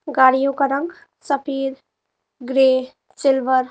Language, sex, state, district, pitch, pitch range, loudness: Hindi, female, Uttar Pradesh, Lalitpur, 270 Hz, 260-280 Hz, -19 LUFS